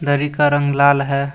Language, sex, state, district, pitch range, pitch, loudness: Hindi, male, Jharkhand, Deoghar, 140-145 Hz, 140 Hz, -16 LUFS